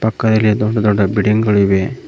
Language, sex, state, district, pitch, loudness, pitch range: Kannada, male, Karnataka, Koppal, 105 Hz, -14 LUFS, 105-110 Hz